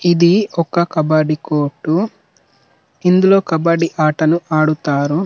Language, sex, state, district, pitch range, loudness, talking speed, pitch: Telugu, male, Telangana, Nalgonda, 155-175 Hz, -15 LUFS, 100 wpm, 165 Hz